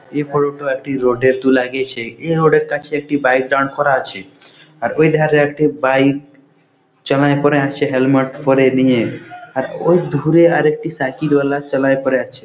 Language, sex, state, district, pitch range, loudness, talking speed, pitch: Bengali, male, West Bengal, Jhargram, 130-150 Hz, -15 LUFS, 175 wpm, 140 Hz